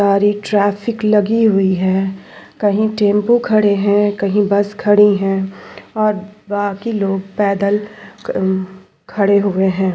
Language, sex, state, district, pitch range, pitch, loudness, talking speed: Hindi, female, Chhattisgarh, Sukma, 195-210 Hz, 205 Hz, -15 LUFS, 135 wpm